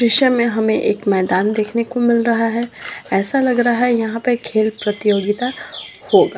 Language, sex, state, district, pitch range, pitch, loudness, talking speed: Magahi, female, Bihar, Samastipur, 210-240 Hz, 235 Hz, -17 LUFS, 180 wpm